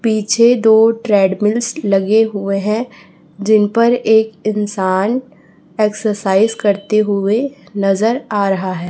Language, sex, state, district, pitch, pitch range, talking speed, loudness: Hindi, female, Chhattisgarh, Raipur, 215 Hz, 200-225 Hz, 115 wpm, -15 LUFS